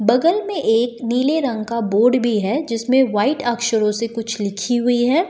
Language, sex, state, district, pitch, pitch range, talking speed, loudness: Hindi, female, Delhi, New Delhi, 235 Hz, 225-260 Hz, 195 wpm, -18 LUFS